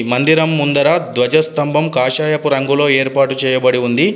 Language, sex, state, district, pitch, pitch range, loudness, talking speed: Telugu, male, Telangana, Adilabad, 145 Hz, 130-155 Hz, -13 LUFS, 115 wpm